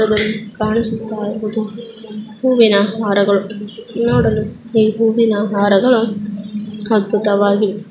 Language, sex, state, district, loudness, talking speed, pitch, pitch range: Kannada, female, Karnataka, Chamarajanagar, -16 LUFS, 85 wpm, 215 Hz, 210-225 Hz